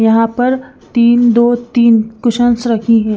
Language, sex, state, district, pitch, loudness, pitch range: Hindi, female, Punjab, Fazilka, 235 Hz, -12 LUFS, 225-240 Hz